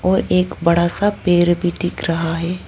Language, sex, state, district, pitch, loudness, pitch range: Hindi, female, Arunachal Pradesh, Lower Dibang Valley, 175 Hz, -17 LUFS, 170-180 Hz